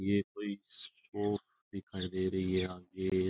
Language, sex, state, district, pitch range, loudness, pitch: Rajasthani, male, Rajasthan, Churu, 95-100 Hz, -37 LUFS, 95 Hz